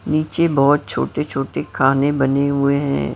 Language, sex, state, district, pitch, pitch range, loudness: Hindi, female, Maharashtra, Mumbai Suburban, 140 Hz, 135-150 Hz, -18 LUFS